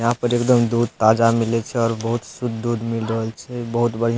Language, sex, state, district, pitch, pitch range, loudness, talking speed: Maithili, male, Bihar, Supaul, 115 Hz, 115-120 Hz, -20 LUFS, 245 wpm